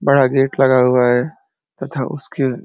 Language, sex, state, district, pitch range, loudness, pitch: Hindi, male, Uttar Pradesh, Ghazipur, 125-140 Hz, -16 LUFS, 135 Hz